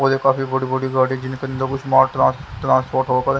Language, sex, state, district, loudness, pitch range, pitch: Hindi, male, Haryana, Jhajjar, -19 LUFS, 130-135 Hz, 130 Hz